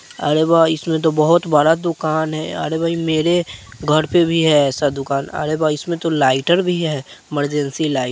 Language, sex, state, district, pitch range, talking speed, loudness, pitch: Bajjika, male, Bihar, Vaishali, 145-165 Hz, 200 wpm, -17 LUFS, 155 Hz